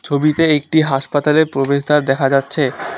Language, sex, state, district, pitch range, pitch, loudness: Bengali, male, West Bengal, Alipurduar, 135-150 Hz, 145 Hz, -15 LUFS